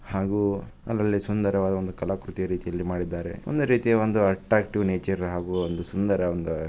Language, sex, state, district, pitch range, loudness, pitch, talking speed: Kannada, male, Karnataka, Shimoga, 90-105 Hz, -26 LUFS, 95 Hz, 145 wpm